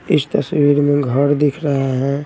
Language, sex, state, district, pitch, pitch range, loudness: Hindi, male, Bihar, Patna, 145 Hz, 140-145 Hz, -16 LUFS